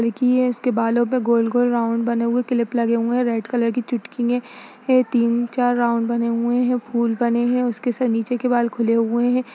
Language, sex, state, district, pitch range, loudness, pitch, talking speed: Hindi, female, Uttar Pradesh, Jyotiba Phule Nagar, 235-245 Hz, -20 LUFS, 240 Hz, 230 wpm